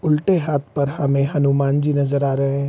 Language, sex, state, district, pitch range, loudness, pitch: Hindi, male, Bihar, Sitamarhi, 140-145 Hz, -19 LUFS, 140 Hz